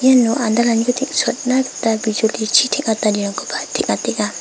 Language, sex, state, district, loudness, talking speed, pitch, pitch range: Garo, female, Meghalaya, West Garo Hills, -17 LUFS, 95 wpm, 235 Hz, 220-260 Hz